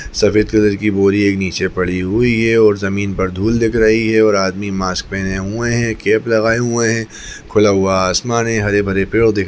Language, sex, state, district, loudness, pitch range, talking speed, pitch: Hindi, male, Chhattisgarh, Bastar, -15 LUFS, 95-115 Hz, 215 wpm, 105 Hz